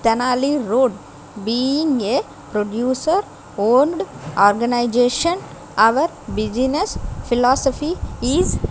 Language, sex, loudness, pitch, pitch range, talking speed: English, female, -19 LUFS, 250 Hz, 230-280 Hz, 85 wpm